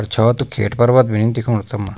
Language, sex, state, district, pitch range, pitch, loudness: Garhwali, male, Uttarakhand, Tehri Garhwal, 105-120 Hz, 115 Hz, -16 LUFS